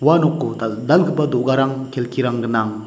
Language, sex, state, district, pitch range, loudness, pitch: Garo, male, Meghalaya, West Garo Hills, 115-150 Hz, -19 LUFS, 130 Hz